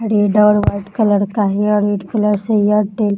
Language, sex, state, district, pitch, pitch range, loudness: Hindi, female, Maharashtra, Nagpur, 210 Hz, 205-210 Hz, -15 LUFS